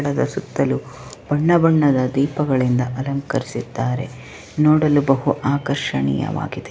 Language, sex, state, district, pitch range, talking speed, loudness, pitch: Kannada, female, Karnataka, Belgaum, 130-145 Hz, 80 wpm, -19 LUFS, 140 Hz